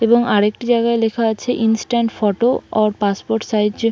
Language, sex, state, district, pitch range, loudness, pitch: Bengali, female, West Bengal, Purulia, 210-235 Hz, -17 LUFS, 225 Hz